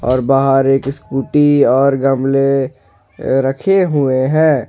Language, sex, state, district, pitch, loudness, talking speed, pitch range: Hindi, male, Jharkhand, Ranchi, 135 Hz, -13 LUFS, 115 wpm, 135-140 Hz